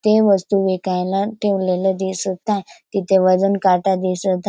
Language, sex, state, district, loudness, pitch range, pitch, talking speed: Marathi, female, Maharashtra, Dhule, -18 LUFS, 185-200 Hz, 190 Hz, 145 wpm